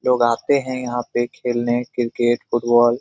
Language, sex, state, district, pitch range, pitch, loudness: Hindi, male, Bihar, Lakhisarai, 120-125 Hz, 120 Hz, -20 LUFS